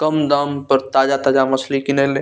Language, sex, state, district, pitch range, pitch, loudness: Maithili, male, Bihar, Saharsa, 135-140 Hz, 140 Hz, -17 LUFS